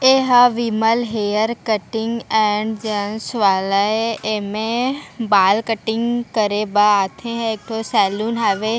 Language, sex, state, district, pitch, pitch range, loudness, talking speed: Chhattisgarhi, female, Chhattisgarh, Raigarh, 220 Hz, 210-230 Hz, -18 LUFS, 115 wpm